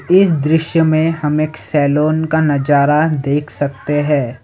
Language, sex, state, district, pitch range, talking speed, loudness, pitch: Hindi, male, Assam, Sonitpur, 145-160 Hz, 150 wpm, -15 LUFS, 150 Hz